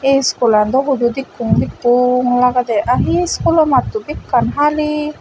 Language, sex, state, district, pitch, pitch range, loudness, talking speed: Chakma, female, Tripura, West Tripura, 270 Hz, 250-300 Hz, -15 LUFS, 150 wpm